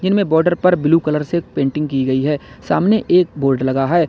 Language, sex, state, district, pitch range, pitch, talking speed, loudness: Hindi, male, Uttar Pradesh, Lalitpur, 140-175 Hz, 160 Hz, 220 wpm, -16 LUFS